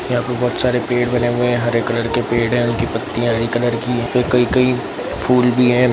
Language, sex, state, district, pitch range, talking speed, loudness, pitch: Hindi, male, Bihar, Araria, 120-125 Hz, 275 wpm, -17 LUFS, 120 Hz